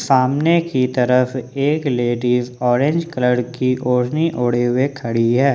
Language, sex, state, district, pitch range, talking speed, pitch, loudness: Hindi, male, Jharkhand, Ranchi, 125-140 Hz, 140 wpm, 125 Hz, -18 LUFS